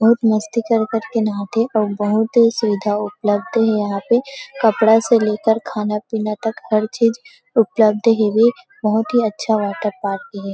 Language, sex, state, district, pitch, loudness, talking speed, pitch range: Chhattisgarhi, female, Chhattisgarh, Rajnandgaon, 220 Hz, -18 LUFS, 175 wpm, 210-230 Hz